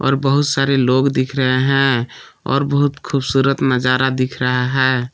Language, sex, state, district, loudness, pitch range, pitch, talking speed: Hindi, male, Jharkhand, Palamu, -16 LUFS, 130-135 Hz, 135 Hz, 165 wpm